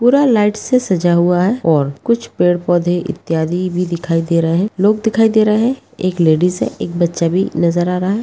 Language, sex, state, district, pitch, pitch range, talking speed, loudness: Hindi, female, Bihar, Begusarai, 180 Hz, 170-215 Hz, 235 wpm, -15 LUFS